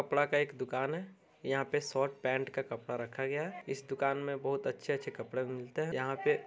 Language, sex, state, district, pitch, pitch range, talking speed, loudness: Hindi, male, Bihar, Darbhanga, 135 Hz, 130-145 Hz, 230 wpm, -36 LUFS